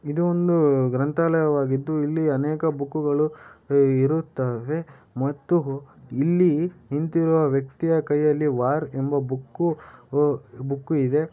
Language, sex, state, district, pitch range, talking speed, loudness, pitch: Kannada, male, Karnataka, Shimoga, 135-160 Hz, 100 wpm, -23 LUFS, 145 Hz